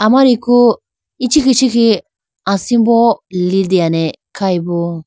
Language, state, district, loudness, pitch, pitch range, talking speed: Idu Mishmi, Arunachal Pradesh, Lower Dibang Valley, -13 LUFS, 215 Hz, 180-245 Hz, 70 wpm